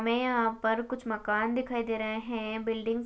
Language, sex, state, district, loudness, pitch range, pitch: Hindi, female, Chhattisgarh, Balrampur, -31 LUFS, 220-235 Hz, 225 Hz